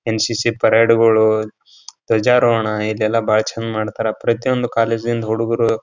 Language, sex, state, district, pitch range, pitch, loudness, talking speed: Kannada, male, Karnataka, Bijapur, 110-115 Hz, 115 Hz, -17 LUFS, 115 wpm